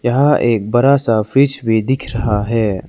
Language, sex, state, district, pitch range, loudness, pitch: Hindi, male, Arunachal Pradesh, Lower Dibang Valley, 110-135 Hz, -15 LUFS, 115 Hz